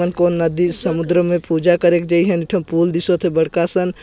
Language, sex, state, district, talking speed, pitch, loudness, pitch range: Hindi, male, Chhattisgarh, Jashpur, 240 wpm, 175 Hz, -16 LUFS, 170-175 Hz